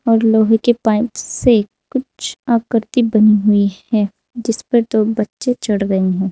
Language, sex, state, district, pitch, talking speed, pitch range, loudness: Hindi, female, Uttar Pradesh, Saharanpur, 225 Hz, 135 wpm, 210-235 Hz, -16 LUFS